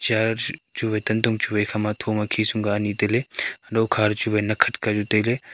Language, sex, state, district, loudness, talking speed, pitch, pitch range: Wancho, male, Arunachal Pradesh, Longding, -23 LUFS, 160 wpm, 110 Hz, 105-110 Hz